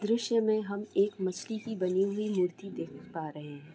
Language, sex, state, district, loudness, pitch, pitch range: Hindi, female, Jharkhand, Jamtara, -32 LUFS, 200 Hz, 180-215 Hz